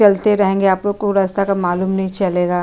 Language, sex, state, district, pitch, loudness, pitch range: Hindi, female, Uttar Pradesh, Jyotiba Phule Nagar, 195 Hz, -16 LUFS, 185-200 Hz